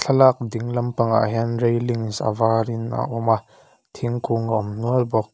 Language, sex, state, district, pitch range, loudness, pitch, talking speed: Mizo, male, Mizoram, Aizawl, 115-120 Hz, -22 LUFS, 115 Hz, 155 wpm